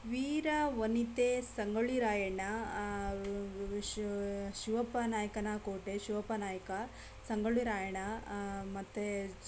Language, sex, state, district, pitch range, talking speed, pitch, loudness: Kannada, female, Karnataka, Belgaum, 200-230 Hz, 90 wpm, 210 Hz, -37 LUFS